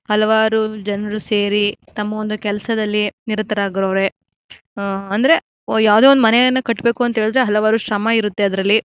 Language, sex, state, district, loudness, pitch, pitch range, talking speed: Kannada, female, Karnataka, Mysore, -17 LUFS, 215 Hz, 205-225 Hz, 130 wpm